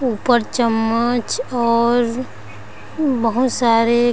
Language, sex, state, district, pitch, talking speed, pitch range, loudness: Hindi, female, Chhattisgarh, Raigarh, 240 Hz, 75 wpm, 230-250 Hz, -17 LUFS